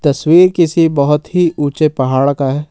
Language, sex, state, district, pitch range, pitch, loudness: Hindi, male, Jharkhand, Ranchi, 140-165 Hz, 150 Hz, -12 LUFS